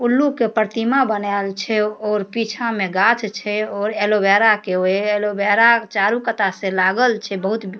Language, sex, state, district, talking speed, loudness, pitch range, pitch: Maithili, female, Bihar, Darbhanga, 170 wpm, -18 LUFS, 200-230 Hz, 210 Hz